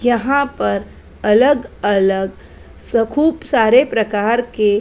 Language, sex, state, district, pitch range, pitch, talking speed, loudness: Hindi, female, Maharashtra, Mumbai Suburban, 205-275 Hz, 230 Hz, 110 wpm, -16 LUFS